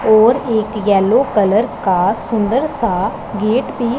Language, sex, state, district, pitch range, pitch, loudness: Hindi, female, Punjab, Pathankot, 205-240 Hz, 220 Hz, -15 LUFS